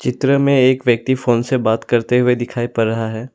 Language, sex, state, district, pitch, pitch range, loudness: Hindi, male, Assam, Sonitpur, 125 Hz, 115-130 Hz, -16 LUFS